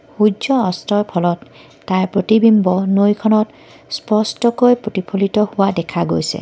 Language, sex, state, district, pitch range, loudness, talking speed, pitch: Assamese, female, Assam, Kamrup Metropolitan, 185-220 Hz, -16 LUFS, 105 wpm, 205 Hz